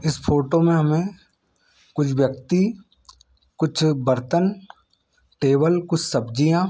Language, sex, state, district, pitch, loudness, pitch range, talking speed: Hindi, male, Chhattisgarh, Bilaspur, 160 Hz, -21 LUFS, 140-175 Hz, 100 wpm